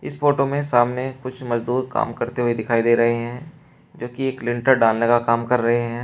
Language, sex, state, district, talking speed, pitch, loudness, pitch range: Hindi, male, Uttar Pradesh, Shamli, 220 wpm, 120 Hz, -20 LUFS, 120-130 Hz